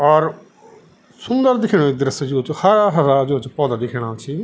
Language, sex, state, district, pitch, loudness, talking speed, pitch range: Garhwali, male, Uttarakhand, Tehri Garhwal, 145 Hz, -17 LUFS, 190 wpm, 135-200 Hz